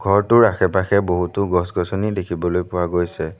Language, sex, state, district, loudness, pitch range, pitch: Assamese, male, Assam, Sonitpur, -19 LUFS, 90-100 Hz, 90 Hz